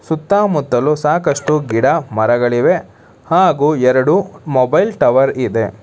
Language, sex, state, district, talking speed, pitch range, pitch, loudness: Kannada, male, Karnataka, Bangalore, 105 wpm, 120-150 Hz, 140 Hz, -14 LUFS